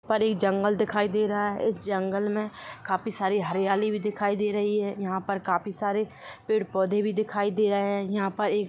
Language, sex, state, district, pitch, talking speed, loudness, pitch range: Hindi, female, Jharkhand, Jamtara, 205 Hz, 215 wpm, -27 LUFS, 195-210 Hz